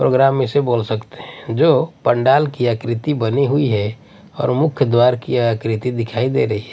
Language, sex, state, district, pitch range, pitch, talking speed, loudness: Hindi, male, Odisha, Nuapada, 115-135 Hz, 120 Hz, 185 wpm, -17 LUFS